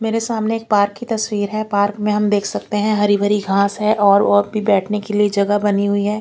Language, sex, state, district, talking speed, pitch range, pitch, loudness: Hindi, female, Chandigarh, Chandigarh, 260 wpm, 205-215 Hz, 205 Hz, -17 LUFS